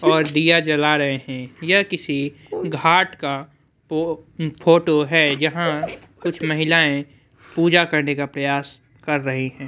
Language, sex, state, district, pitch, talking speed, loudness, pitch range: Hindi, male, Bihar, Muzaffarpur, 150 Hz, 130 wpm, -19 LUFS, 140-165 Hz